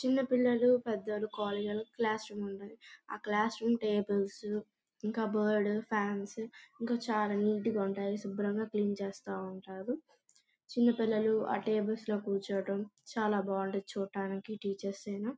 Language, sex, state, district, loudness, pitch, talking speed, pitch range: Telugu, female, Andhra Pradesh, Guntur, -34 LUFS, 210 Hz, 135 wpm, 200-220 Hz